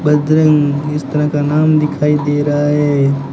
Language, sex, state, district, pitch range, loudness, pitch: Hindi, male, Rajasthan, Bikaner, 145-150 Hz, -14 LUFS, 150 Hz